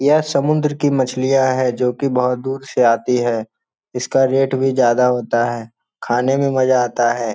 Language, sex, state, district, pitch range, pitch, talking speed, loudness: Hindi, male, Bihar, Jamui, 120-135 Hz, 130 Hz, 190 wpm, -17 LUFS